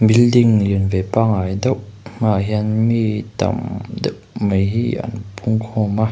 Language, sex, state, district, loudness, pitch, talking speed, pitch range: Mizo, male, Mizoram, Aizawl, -18 LUFS, 110 Hz, 155 wpm, 105-115 Hz